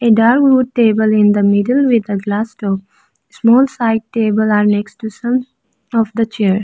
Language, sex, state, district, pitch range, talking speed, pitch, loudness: English, female, Arunachal Pradesh, Lower Dibang Valley, 210-240 Hz, 170 wpm, 220 Hz, -14 LUFS